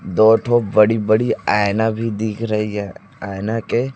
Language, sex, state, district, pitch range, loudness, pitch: Hindi, male, Chhattisgarh, Raipur, 105-115 Hz, -18 LUFS, 110 Hz